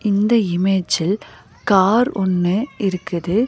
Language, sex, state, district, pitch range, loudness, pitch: Tamil, female, Tamil Nadu, Nilgiris, 185-215 Hz, -18 LUFS, 195 Hz